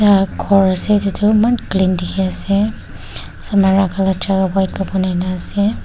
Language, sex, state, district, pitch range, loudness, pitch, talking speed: Nagamese, female, Nagaland, Dimapur, 190-200 Hz, -15 LUFS, 195 Hz, 90 wpm